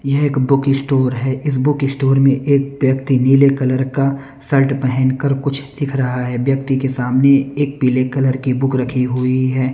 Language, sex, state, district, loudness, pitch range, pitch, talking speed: Hindi, male, Bihar, West Champaran, -16 LUFS, 130-140 Hz, 135 Hz, 190 wpm